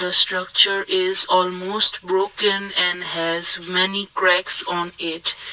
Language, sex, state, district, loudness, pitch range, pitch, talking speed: English, male, Assam, Kamrup Metropolitan, -18 LUFS, 175-200 Hz, 185 Hz, 110 wpm